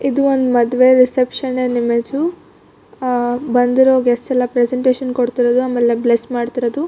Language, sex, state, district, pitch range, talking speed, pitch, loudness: Kannada, female, Karnataka, Shimoga, 240-260 Hz, 130 wpm, 250 Hz, -15 LUFS